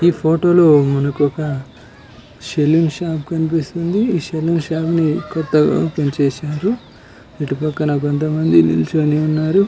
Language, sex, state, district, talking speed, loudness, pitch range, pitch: Telugu, male, Telangana, Karimnagar, 125 wpm, -17 LUFS, 140-165 Hz, 155 Hz